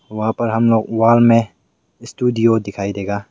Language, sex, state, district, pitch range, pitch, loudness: Hindi, male, Meghalaya, West Garo Hills, 100-115 Hz, 115 Hz, -16 LUFS